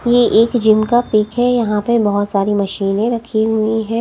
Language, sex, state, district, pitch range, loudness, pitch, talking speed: Hindi, female, Punjab, Kapurthala, 210-235 Hz, -15 LUFS, 220 Hz, 195 wpm